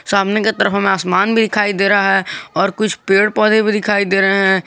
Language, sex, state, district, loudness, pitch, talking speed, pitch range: Hindi, male, Jharkhand, Garhwa, -14 LUFS, 200 Hz, 245 wpm, 195-215 Hz